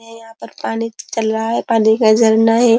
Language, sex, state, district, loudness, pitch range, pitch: Hindi, female, Uttar Pradesh, Jyotiba Phule Nagar, -15 LUFS, 220-230 Hz, 225 Hz